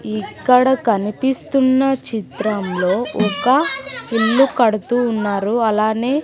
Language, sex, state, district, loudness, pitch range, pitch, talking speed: Telugu, female, Andhra Pradesh, Sri Satya Sai, -17 LUFS, 215-265 Hz, 230 Hz, 75 wpm